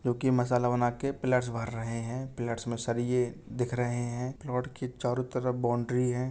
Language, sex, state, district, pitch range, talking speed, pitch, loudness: Hindi, male, Uttar Pradesh, Jalaun, 120-125 Hz, 180 wpm, 125 Hz, -31 LUFS